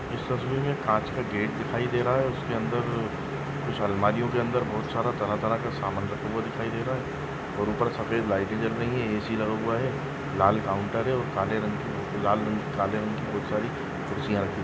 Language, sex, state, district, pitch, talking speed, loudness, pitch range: Hindi, male, Chhattisgarh, Rajnandgaon, 115 Hz, 215 wpm, -28 LUFS, 105-130 Hz